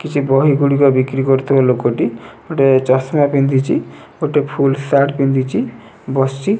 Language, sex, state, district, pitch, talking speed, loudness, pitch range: Odia, male, Odisha, Nuapada, 135 Hz, 125 wpm, -15 LUFS, 130-140 Hz